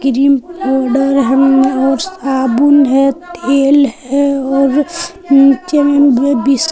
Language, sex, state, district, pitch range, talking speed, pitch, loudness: Hindi, female, Jharkhand, Palamu, 270-285 Hz, 105 wpm, 275 Hz, -11 LUFS